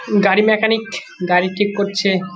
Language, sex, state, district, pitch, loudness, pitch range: Bengali, male, West Bengal, Jhargram, 200 Hz, -16 LUFS, 185-215 Hz